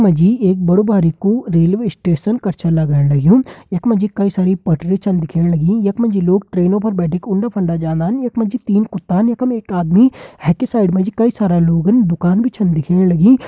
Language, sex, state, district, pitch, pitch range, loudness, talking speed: Garhwali, male, Uttarakhand, Uttarkashi, 195 Hz, 175-220 Hz, -15 LUFS, 225 wpm